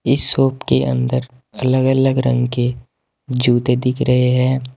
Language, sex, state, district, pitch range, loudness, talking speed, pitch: Hindi, male, Uttar Pradesh, Saharanpur, 120-130 Hz, -16 LUFS, 150 wpm, 125 Hz